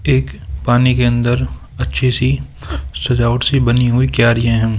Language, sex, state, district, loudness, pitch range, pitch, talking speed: Hindi, male, Rajasthan, Jaipur, -15 LUFS, 85-125 Hz, 120 Hz, 150 wpm